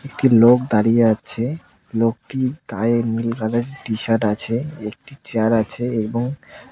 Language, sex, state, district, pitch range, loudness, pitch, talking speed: Bengali, male, West Bengal, Cooch Behar, 115-125 Hz, -19 LUFS, 115 Hz, 125 wpm